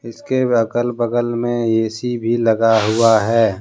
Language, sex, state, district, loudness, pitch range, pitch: Hindi, male, Jharkhand, Deoghar, -17 LUFS, 115-120 Hz, 115 Hz